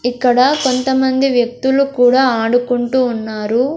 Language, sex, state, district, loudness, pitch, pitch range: Telugu, female, Andhra Pradesh, Sri Satya Sai, -14 LUFS, 250 Hz, 245-265 Hz